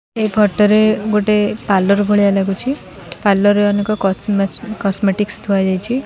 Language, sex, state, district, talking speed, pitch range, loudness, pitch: Odia, female, Odisha, Khordha, 130 wpm, 195-215 Hz, -15 LUFS, 205 Hz